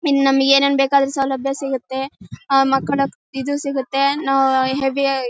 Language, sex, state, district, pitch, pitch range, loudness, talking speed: Kannada, female, Karnataka, Bellary, 270 Hz, 270-275 Hz, -18 LUFS, 170 wpm